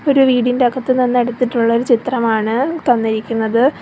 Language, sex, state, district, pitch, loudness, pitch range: Malayalam, female, Kerala, Kollam, 245 Hz, -15 LUFS, 230-255 Hz